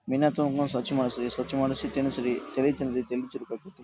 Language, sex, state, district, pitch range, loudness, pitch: Kannada, male, Karnataka, Dharwad, 125-140 Hz, -29 LUFS, 135 Hz